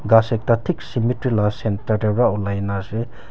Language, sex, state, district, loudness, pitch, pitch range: Nagamese, male, Nagaland, Kohima, -21 LUFS, 110 Hz, 105-120 Hz